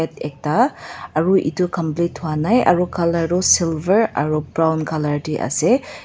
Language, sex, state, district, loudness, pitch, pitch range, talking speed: Nagamese, female, Nagaland, Dimapur, -19 LUFS, 165 Hz, 155-180 Hz, 140 wpm